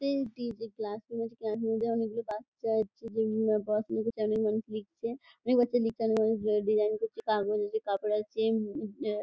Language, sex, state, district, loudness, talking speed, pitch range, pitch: Bengali, female, West Bengal, Jhargram, -31 LUFS, 190 wpm, 215-230 Hz, 220 Hz